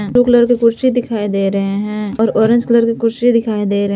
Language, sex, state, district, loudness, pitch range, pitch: Hindi, female, Jharkhand, Palamu, -14 LUFS, 205-235 Hz, 230 Hz